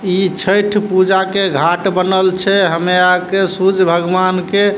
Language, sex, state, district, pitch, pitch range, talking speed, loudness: Maithili, male, Bihar, Samastipur, 190 Hz, 180-195 Hz, 175 wpm, -13 LUFS